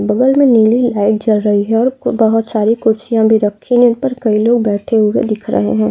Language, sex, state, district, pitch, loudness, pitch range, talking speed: Hindi, female, Bihar, Gaya, 220 Hz, -13 LUFS, 210-240 Hz, 225 wpm